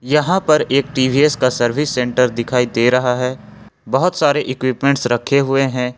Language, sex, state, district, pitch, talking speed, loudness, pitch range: Hindi, male, Jharkhand, Ranchi, 130 Hz, 160 wpm, -16 LUFS, 125-140 Hz